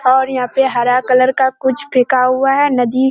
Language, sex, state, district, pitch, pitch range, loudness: Hindi, female, Bihar, Kishanganj, 260 Hz, 255-265 Hz, -14 LUFS